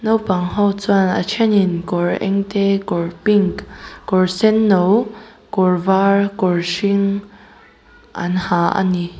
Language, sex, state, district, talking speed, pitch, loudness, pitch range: Mizo, female, Mizoram, Aizawl, 130 wpm, 195 Hz, -17 LUFS, 180-205 Hz